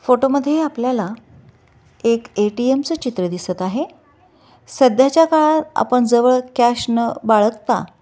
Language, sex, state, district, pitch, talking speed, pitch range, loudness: Marathi, female, Maharashtra, Dhule, 240 Hz, 140 wpm, 210-270 Hz, -17 LUFS